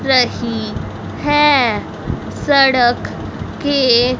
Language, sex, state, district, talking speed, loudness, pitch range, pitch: Hindi, female, Haryana, Rohtak, 55 wpm, -15 LUFS, 250-285 Hz, 265 Hz